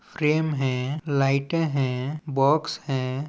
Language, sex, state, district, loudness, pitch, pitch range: Chhattisgarhi, male, Chhattisgarh, Balrampur, -25 LUFS, 140 Hz, 135-155 Hz